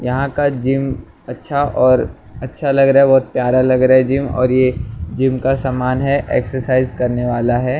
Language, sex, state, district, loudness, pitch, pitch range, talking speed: Hindi, male, Maharashtra, Mumbai Suburban, -15 LUFS, 130 Hz, 125-135 Hz, 200 wpm